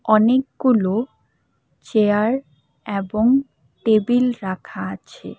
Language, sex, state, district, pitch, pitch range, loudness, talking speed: Bengali, female, Assam, Hailakandi, 215 Hz, 195-245 Hz, -20 LUFS, 65 wpm